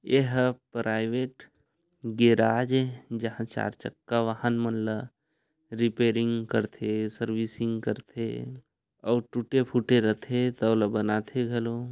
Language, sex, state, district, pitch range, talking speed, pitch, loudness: Hindi, male, Chhattisgarh, Raigarh, 110-125 Hz, 105 wpm, 115 Hz, -28 LUFS